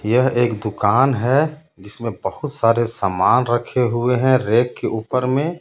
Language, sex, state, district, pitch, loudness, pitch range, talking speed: Hindi, male, Jharkhand, Ranchi, 120 Hz, -18 LUFS, 110-130 Hz, 160 wpm